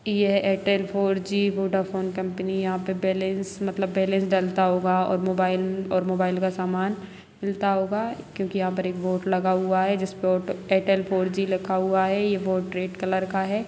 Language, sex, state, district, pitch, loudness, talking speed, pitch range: Hindi, female, Bihar, Sitamarhi, 190 Hz, -25 LUFS, 195 wpm, 185-195 Hz